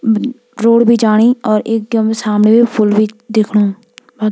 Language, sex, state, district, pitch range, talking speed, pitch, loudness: Garhwali, female, Uttarakhand, Tehri Garhwal, 215-235 Hz, 140 wpm, 220 Hz, -12 LUFS